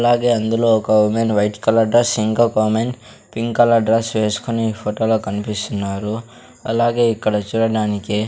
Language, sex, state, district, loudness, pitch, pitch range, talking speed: Telugu, male, Andhra Pradesh, Sri Satya Sai, -18 LUFS, 110 Hz, 105-115 Hz, 130 wpm